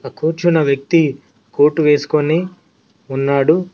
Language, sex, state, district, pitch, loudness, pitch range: Telugu, male, Telangana, Mahabubabad, 155 Hz, -16 LUFS, 140-165 Hz